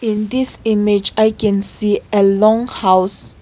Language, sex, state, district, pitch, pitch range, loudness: English, female, Nagaland, Kohima, 210 Hz, 200-220 Hz, -15 LUFS